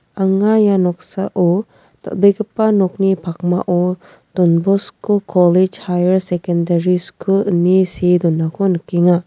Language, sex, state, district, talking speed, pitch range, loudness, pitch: Garo, female, Meghalaya, West Garo Hills, 105 wpm, 175-195 Hz, -16 LUFS, 180 Hz